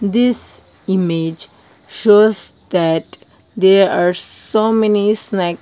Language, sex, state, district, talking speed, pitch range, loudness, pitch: English, female, Nagaland, Dimapur, 95 wpm, 180-215 Hz, -15 LUFS, 200 Hz